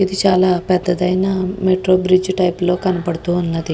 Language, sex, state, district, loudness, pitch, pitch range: Telugu, female, Andhra Pradesh, Guntur, -16 LUFS, 185 Hz, 180-185 Hz